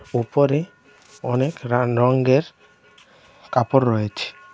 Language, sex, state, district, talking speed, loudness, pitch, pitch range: Bengali, male, Tripura, West Tripura, 90 wpm, -20 LUFS, 130 Hz, 120-140 Hz